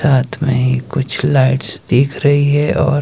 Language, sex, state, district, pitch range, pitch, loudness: Hindi, male, Himachal Pradesh, Shimla, 130-145 Hz, 135 Hz, -15 LUFS